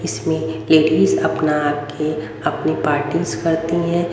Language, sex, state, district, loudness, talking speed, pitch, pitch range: Hindi, female, Haryana, Rohtak, -18 LUFS, 115 wpm, 155 Hz, 145-165 Hz